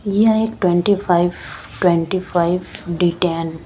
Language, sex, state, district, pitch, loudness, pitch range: Hindi, female, Chandigarh, Chandigarh, 180 Hz, -18 LUFS, 175-195 Hz